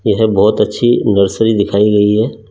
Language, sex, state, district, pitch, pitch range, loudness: Hindi, male, Delhi, New Delhi, 105 Hz, 100-110 Hz, -12 LUFS